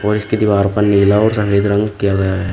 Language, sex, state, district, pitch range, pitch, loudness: Hindi, male, Uttar Pradesh, Shamli, 100-105 Hz, 100 Hz, -14 LUFS